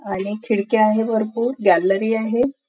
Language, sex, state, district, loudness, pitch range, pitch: Marathi, female, Maharashtra, Nagpur, -19 LUFS, 200-230 Hz, 220 Hz